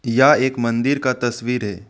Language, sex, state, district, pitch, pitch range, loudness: Hindi, male, West Bengal, Alipurduar, 125 Hz, 115-130 Hz, -18 LUFS